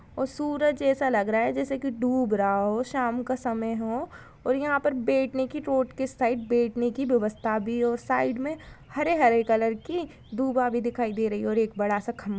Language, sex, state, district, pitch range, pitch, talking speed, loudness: Hindi, female, Uttar Pradesh, Budaun, 225-265 Hz, 240 Hz, 225 wpm, -26 LUFS